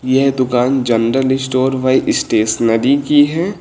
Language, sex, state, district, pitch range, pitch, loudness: Hindi, male, Uttar Pradesh, Lucknow, 125-135 Hz, 130 Hz, -14 LUFS